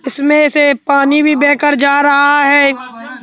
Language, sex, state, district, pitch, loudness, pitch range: Hindi, male, Madhya Pradesh, Bhopal, 285 Hz, -10 LUFS, 275-290 Hz